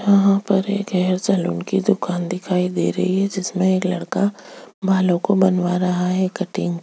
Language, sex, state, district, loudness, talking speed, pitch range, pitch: Hindi, female, Chhattisgarh, Jashpur, -20 LUFS, 175 wpm, 180-195 Hz, 185 Hz